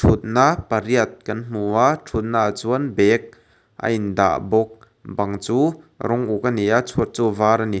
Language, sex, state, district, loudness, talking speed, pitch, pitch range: Mizo, male, Mizoram, Aizawl, -20 LUFS, 190 wpm, 110 Hz, 105-120 Hz